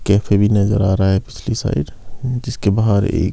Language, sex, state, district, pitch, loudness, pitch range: Hindi, male, Himachal Pradesh, Shimla, 100 Hz, -17 LUFS, 95-110 Hz